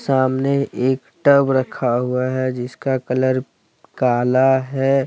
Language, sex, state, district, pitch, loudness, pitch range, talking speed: Hindi, male, Jharkhand, Deoghar, 130 Hz, -19 LUFS, 125-135 Hz, 120 wpm